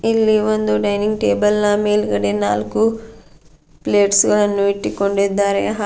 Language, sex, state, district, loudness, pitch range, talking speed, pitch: Kannada, female, Karnataka, Bidar, -17 LUFS, 160-210 Hz, 125 wpm, 205 Hz